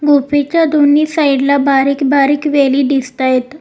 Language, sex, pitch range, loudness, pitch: Marathi, female, 275-295 Hz, -12 LUFS, 280 Hz